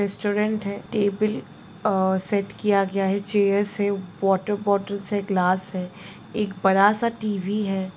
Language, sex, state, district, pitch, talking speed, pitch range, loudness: Hindi, female, Bihar, Sitamarhi, 200 Hz, 150 wpm, 195-205 Hz, -23 LUFS